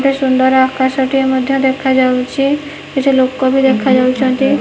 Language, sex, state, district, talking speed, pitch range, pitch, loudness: Odia, female, Odisha, Nuapada, 130 wpm, 260-270 Hz, 265 Hz, -13 LUFS